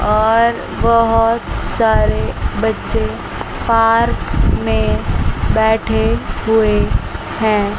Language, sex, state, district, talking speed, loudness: Hindi, female, Chandigarh, Chandigarh, 70 wpm, -16 LUFS